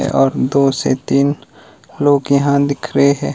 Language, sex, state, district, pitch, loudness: Hindi, male, Himachal Pradesh, Shimla, 140 Hz, -15 LUFS